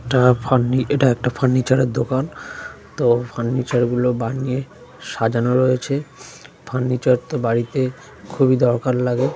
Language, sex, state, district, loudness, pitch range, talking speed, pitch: Bengali, male, West Bengal, Jhargram, -19 LUFS, 120-130 Hz, 130 wpm, 125 Hz